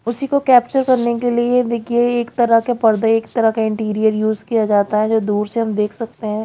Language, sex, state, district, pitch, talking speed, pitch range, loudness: Hindi, female, Haryana, Jhajjar, 230 Hz, 250 wpm, 215-240 Hz, -17 LUFS